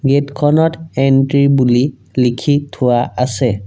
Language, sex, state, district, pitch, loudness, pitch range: Assamese, male, Assam, Sonitpur, 135 Hz, -14 LUFS, 125-145 Hz